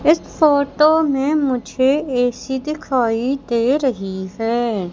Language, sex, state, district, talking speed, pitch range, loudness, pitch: Hindi, female, Madhya Pradesh, Katni, 110 wpm, 235-295 Hz, -18 LUFS, 265 Hz